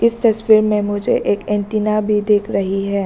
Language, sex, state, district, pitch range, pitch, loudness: Hindi, female, Arunachal Pradesh, Lower Dibang Valley, 205-215 Hz, 210 Hz, -16 LUFS